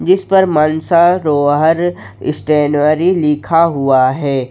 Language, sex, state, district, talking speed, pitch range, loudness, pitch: Hindi, male, Jharkhand, Ranchi, 95 wpm, 145-170 Hz, -13 LUFS, 155 Hz